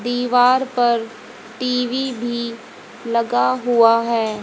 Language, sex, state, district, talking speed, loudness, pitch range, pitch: Hindi, female, Haryana, Jhajjar, 95 wpm, -18 LUFS, 230-245 Hz, 235 Hz